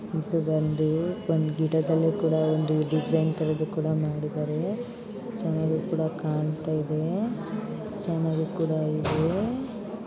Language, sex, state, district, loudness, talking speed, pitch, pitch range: Kannada, female, Karnataka, Dakshina Kannada, -27 LUFS, 90 wpm, 160 Hz, 155-190 Hz